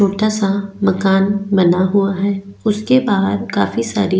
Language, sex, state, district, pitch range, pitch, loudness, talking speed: Hindi, female, Goa, North and South Goa, 190-205 Hz, 195 Hz, -16 LUFS, 155 wpm